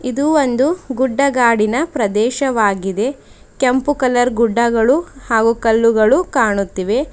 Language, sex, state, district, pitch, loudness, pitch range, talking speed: Kannada, female, Karnataka, Bidar, 245 Hz, -15 LUFS, 225-275 Hz, 85 wpm